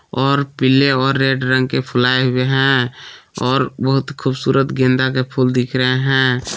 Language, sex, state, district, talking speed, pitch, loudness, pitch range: Hindi, male, Jharkhand, Palamu, 165 wpm, 130 Hz, -16 LUFS, 130-135 Hz